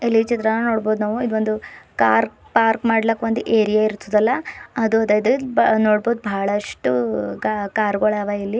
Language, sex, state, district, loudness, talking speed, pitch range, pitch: Kannada, female, Karnataka, Bidar, -19 LUFS, 120 wpm, 210-225 Hz, 215 Hz